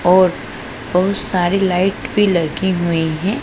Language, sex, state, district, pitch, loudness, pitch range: Hindi, female, Punjab, Pathankot, 180 Hz, -17 LUFS, 160-190 Hz